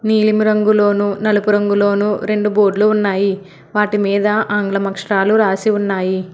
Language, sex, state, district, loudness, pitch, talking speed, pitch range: Telugu, female, Telangana, Hyderabad, -15 LUFS, 205 Hz, 125 wpm, 200-210 Hz